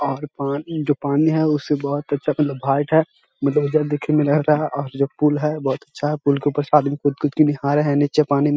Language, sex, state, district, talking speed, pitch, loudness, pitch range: Hindi, male, Bihar, Jahanabad, 265 wpm, 145 Hz, -20 LUFS, 140-150 Hz